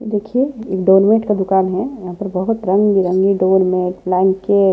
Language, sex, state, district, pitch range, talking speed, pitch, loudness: Hindi, male, Maharashtra, Washim, 185-210 Hz, 190 wpm, 190 Hz, -16 LUFS